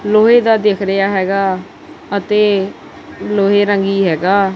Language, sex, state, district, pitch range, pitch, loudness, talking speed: Punjabi, male, Punjab, Kapurthala, 195-210 Hz, 200 Hz, -14 LUFS, 120 wpm